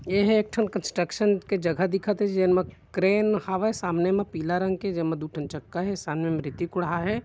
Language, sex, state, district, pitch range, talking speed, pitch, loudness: Chhattisgarhi, male, Chhattisgarh, Bilaspur, 170-205 Hz, 240 wpm, 185 Hz, -26 LUFS